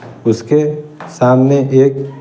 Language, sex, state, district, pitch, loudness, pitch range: Hindi, male, Bihar, Patna, 135 Hz, -12 LUFS, 130-150 Hz